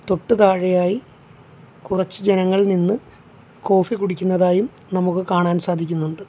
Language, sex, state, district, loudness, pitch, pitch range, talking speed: Malayalam, male, Kerala, Kollam, -19 LUFS, 185 Hz, 175-195 Hz, 95 wpm